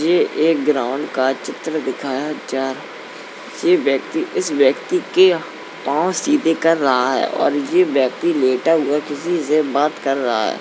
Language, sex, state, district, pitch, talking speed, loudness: Hindi, male, Uttar Pradesh, Jalaun, 160 Hz, 160 wpm, -18 LUFS